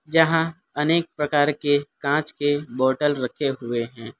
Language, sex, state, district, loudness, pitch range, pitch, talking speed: Hindi, male, Gujarat, Valsad, -23 LUFS, 130-155 Hz, 145 Hz, 145 wpm